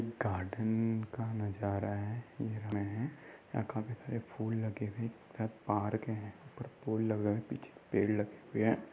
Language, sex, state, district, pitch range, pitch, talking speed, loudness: Hindi, male, Uttar Pradesh, Ghazipur, 105-115 Hz, 110 Hz, 170 wpm, -37 LUFS